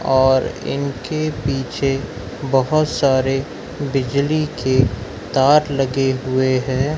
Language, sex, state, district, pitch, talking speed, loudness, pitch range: Hindi, male, Madhya Pradesh, Dhar, 135 Hz, 95 wpm, -19 LUFS, 130-140 Hz